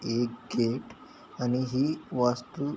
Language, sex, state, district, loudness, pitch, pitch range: Marathi, male, Maharashtra, Chandrapur, -30 LUFS, 125 Hz, 120-130 Hz